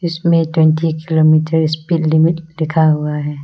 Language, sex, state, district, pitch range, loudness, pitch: Hindi, female, Arunachal Pradesh, Lower Dibang Valley, 155-165 Hz, -14 LUFS, 160 Hz